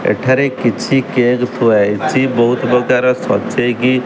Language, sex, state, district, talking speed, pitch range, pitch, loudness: Odia, male, Odisha, Khordha, 135 wpm, 120-130 Hz, 125 Hz, -14 LUFS